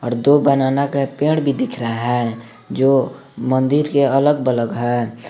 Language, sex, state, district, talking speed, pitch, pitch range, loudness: Hindi, male, Jharkhand, Garhwa, 170 wpm, 130 Hz, 120-140 Hz, -17 LUFS